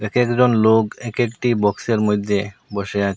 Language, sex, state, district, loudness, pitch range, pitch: Bengali, male, Assam, Hailakandi, -19 LUFS, 105-120 Hz, 110 Hz